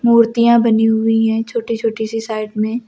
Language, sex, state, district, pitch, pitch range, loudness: Hindi, female, Uttar Pradesh, Lucknow, 225 Hz, 220-235 Hz, -16 LUFS